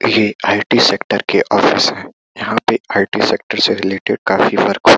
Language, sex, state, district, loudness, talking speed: Hindi, male, Uttar Pradesh, Gorakhpur, -14 LUFS, 195 wpm